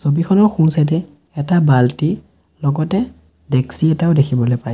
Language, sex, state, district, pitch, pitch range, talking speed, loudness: Assamese, male, Assam, Sonitpur, 155 Hz, 140-170 Hz, 125 wpm, -16 LUFS